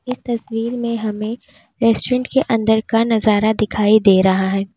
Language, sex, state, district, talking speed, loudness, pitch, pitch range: Hindi, female, Uttar Pradesh, Lalitpur, 165 wpm, -17 LUFS, 225 Hz, 210-235 Hz